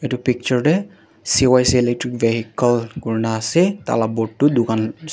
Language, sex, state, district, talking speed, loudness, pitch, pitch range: Nagamese, male, Nagaland, Dimapur, 140 wpm, -18 LUFS, 120 Hz, 115-140 Hz